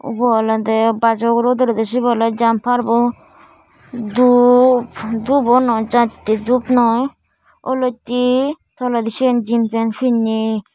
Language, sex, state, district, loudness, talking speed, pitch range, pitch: Chakma, female, Tripura, Dhalai, -16 LUFS, 125 wpm, 225-250 Hz, 240 Hz